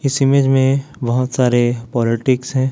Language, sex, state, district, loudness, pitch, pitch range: Hindi, male, Chhattisgarh, Raipur, -16 LUFS, 130 Hz, 120-135 Hz